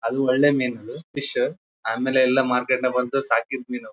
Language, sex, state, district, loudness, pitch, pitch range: Kannada, male, Karnataka, Bellary, -22 LUFS, 130 Hz, 125-140 Hz